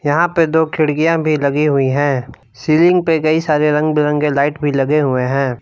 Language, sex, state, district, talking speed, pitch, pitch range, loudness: Hindi, male, Jharkhand, Palamu, 205 wpm, 150 Hz, 140-155 Hz, -15 LUFS